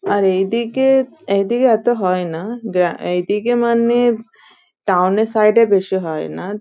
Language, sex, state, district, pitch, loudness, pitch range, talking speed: Bengali, female, West Bengal, Dakshin Dinajpur, 215 Hz, -16 LUFS, 190-235 Hz, 125 wpm